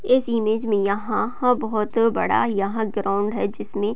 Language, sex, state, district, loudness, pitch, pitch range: Hindi, female, Bihar, Gopalganj, -22 LUFS, 215 Hz, 205-230 Hz